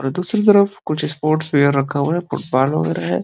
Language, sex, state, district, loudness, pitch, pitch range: Hindi, male, Uttar Pradesh, Deoria, -18 LUFS, 150 Hz, 135-170 Hz